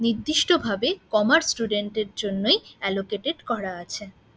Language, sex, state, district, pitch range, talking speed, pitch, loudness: Bengali, female, West Bengal, Dakshin Dinajpur, 200-285 Hz, 110 wpm, 215 Hz, -24 LUFS